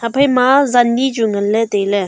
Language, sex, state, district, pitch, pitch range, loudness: Wancho, female, Arunachal Pradesh, Longding, 235 Hz, 205-260 Hz, -14 LUFS